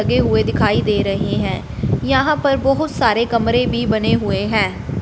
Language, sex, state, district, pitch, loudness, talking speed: Hindi, female, Punjab, Fazilka, 235 Hz, -17 LUFS, 180 wpm